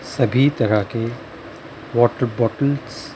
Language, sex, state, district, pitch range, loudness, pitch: Hindi, male, Maharashtra, Mumbai Suburban, 115-130 Hz, -20 LUFS, 120 Hz